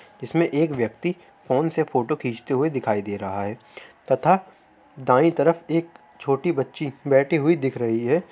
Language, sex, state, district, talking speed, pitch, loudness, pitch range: Hindi, male, Uttar Pradesh, Hamirpur, 165 wpm, 140 Hz, -23 LUFS, 125-165 Hz